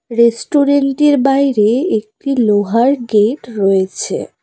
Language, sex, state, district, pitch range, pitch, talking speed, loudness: Bengali, female, West Bengal, Cooch Behar, 210-280 Hz, 240 Hz, 95 wpm, -14 LUFS